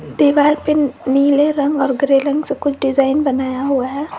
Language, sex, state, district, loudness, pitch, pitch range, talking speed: Hindi, female, Jharkhand, Garhwa, -16 LUFS, 280 Hz, 270-290 Hz, 185 wpm